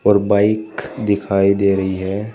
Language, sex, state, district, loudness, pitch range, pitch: Hindi, male, Uttar Pradesh, Saharanpur, -17 LUFS, 100-105 Hz, 100 Hz